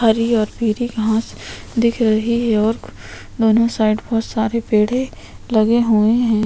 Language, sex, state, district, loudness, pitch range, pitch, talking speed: Hindi, female, Chhattisgarh, Sukma, -17 LUFS, 220-235 Hz, 225 Hz, 150 wpm